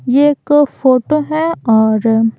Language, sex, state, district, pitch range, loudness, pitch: Hindi, female, Bihar, Patna, 225-295 Hz, -13 LUFS, 265 Hz